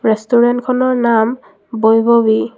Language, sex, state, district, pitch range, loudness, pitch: Assamese, female, Assam, Kamrup Metropolitan, 220-240 Hz, -13 LUFS, 230 Hz